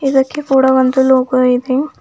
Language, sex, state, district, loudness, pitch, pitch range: Kannada, female, Karnataka, Bidar, -13 LUFS, 265 Hz, 255-270 Hz